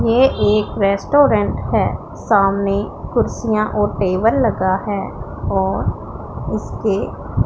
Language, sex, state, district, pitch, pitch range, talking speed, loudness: Hindi, female, Punjab, Pathankot, 205 Hz, 195-215 Hz, 95 wpm, -18 LUFS